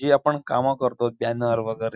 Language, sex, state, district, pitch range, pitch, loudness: Marathi, female, Maharashtra, Dhule, 115-140 Hz, 120 Hz, -23 LUFS